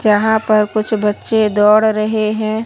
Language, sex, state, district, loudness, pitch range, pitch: Hindi, male, Chhattisgarh, Raipur, -14 LUFS, 215-220 Hz, 215 Hz